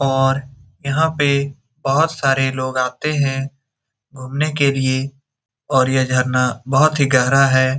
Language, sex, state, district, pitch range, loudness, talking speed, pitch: Hindi, male, Bihar, Saran, 130-140 Hz, -17 LUFS, 140 wpm, 135 Hz